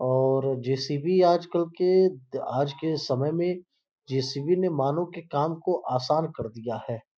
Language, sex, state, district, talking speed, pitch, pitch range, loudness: Hindi, male, Uttar Pradesh, Gorakhpur, 150 wpm, 150 Hz, 135-175 Hz, -26 LUFS